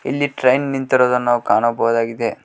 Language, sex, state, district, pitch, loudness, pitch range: Kannada, male, Karnataka, Koppal, 125 Hz, -17 LUFS, 115-135 Hz